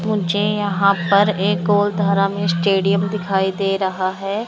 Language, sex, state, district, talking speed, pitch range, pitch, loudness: Hindi, male, Chandigarh, Chandigarh, 160 wpm, 190-205 Hz, 195 Hz, -18 LUFS